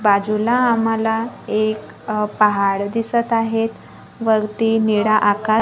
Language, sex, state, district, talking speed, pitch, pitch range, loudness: Marathi, female, Maharashtra, Gondia, 105 wpm, 220 Hz, 210-225 Hz, -18 LUFS